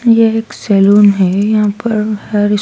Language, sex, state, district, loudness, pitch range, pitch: Hindi, female, Madhya Pradesh, Dhar, -12 LUFS, 200-225 Hz, 210 Hz